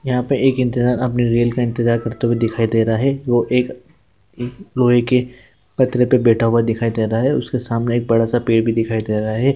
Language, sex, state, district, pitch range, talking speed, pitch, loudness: Hindi, male, Bihar, Jamui, 115-125 Hz, 220 wpm, 120 Hz, -17 LUFS